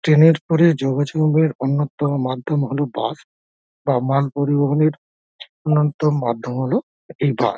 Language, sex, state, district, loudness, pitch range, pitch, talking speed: Bengali, male, West Bengal, Dakshin Dinajpur, -19 LUFS, 130-150 Hz, 145 Hz, 135 wpm